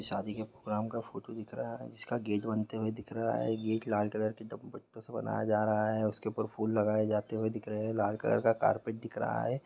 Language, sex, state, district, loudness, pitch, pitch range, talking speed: Hindi, male, Bihar, East Champaran, -34 LUFS, 110 Hz, 105-110 Hz, 255 wpm